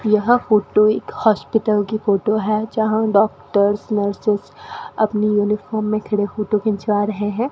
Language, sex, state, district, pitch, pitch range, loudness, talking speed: Hindi, female, Rajasthan, Bikaner, 215 Hz, 205-220 Hz, -18 LUFS, 145 wpm